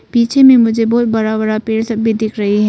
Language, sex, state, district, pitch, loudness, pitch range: Hindi, female, Arunachal Pradesh, Papum Pare, 225 Hz, -13 LUFS, 220-230 Hz